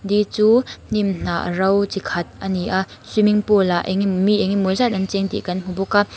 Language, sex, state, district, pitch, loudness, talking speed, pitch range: Mizo, female, Mizoram, Aizawl, 195 Hz, -19 LUFS, 235 wpm, 190-210 Hz